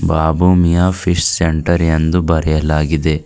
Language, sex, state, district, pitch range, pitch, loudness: Kannada, female, Karnataka, Bidar, 80-90 Hz, 80 Hz, -14 LUFS